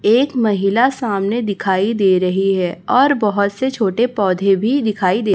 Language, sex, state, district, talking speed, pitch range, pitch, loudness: Hindi, female, Chhattisgarh, Raipur, 170 wpm, 195-235 Hz, 205 Hz, -16 LUFS